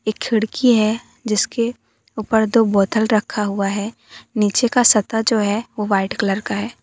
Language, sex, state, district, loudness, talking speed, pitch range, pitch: Hindi, female, Jharkhand, Deoghar, -18 LUFS, 175 wpm, 205-230 Hz, 215 Hz